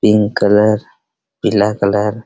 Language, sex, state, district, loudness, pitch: Hindi, male, Bihar, Araria, -14 LUFS, 105 Hz